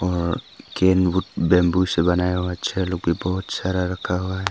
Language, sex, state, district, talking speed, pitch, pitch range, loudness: Hindi, male, Arunachal Pradesh, Papum Pare, 185 wpm, 90 Hz, 90-95 Hz, -22 LUFS